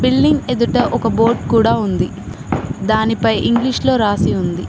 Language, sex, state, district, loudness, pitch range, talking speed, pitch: Telugu, female, Telangana, Mahabubabad, -16 LUFS, 220-250 Hz, 140 wpm, 230 Hz